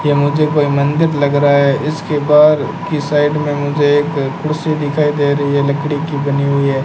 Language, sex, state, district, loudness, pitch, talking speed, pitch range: Hindi, male, Rajasthan, Bikaner, -14 LUFS, 145 Hz, 210 wpm, 140-150 Hz